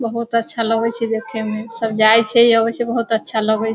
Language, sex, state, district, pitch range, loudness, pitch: Hindi, female, Bihar, Sitamarhi, 220-230 Hz, -17 LUFS, 225 Hz